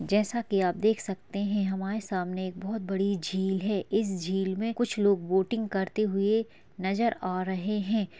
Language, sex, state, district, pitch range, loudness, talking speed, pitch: Hindi, female, Chhattisgarh, Kabirdham, 190-215 Hz, -29 LUFS, 190 wpm, 195 Hz